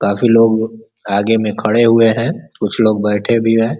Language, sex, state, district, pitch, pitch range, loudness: Hindi, male, Uttar Pradesh, Ghazipur, 115 Hz, 105-115 Hz, -14 LUFS